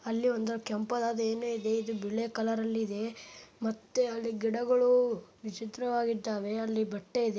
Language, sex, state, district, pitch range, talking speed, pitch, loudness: Kannada, male, Karnataka, Bellary, 220-235 Hz, 140 wpm, 225 Hz, -32 LUFS